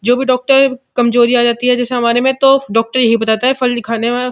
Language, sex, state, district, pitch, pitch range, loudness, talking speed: Hindi, male, Uttar Pradesh, Muzaffarnagar, 245 Hz, 235-255 Hz, -13 LUFS, 265 wpm